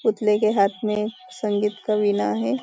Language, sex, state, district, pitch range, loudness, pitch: Hindi, female, Maharashtra, Nagpur, 205-220 Hz, -22 LUFS, 210 Hz